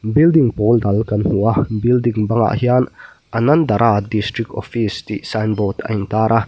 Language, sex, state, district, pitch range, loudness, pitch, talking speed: Mizo, male, Mizoram, Aizawl, 105-120 Hz, -17 LUFS, 110 Hz, 175 wpm